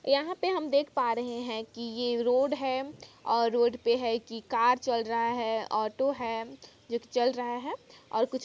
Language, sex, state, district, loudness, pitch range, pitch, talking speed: Hindi, female, Chhattisgarh, Kabirdham, -30 LUFS, 230-265 Hz, 240 Hz, 205 wpm